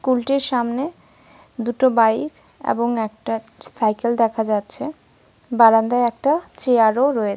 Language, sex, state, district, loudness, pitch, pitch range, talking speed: Bengali, female, Jharkhand, Sahebganj, -19 LUFS, 235 Hz, 225-260 Hz, 130 wpm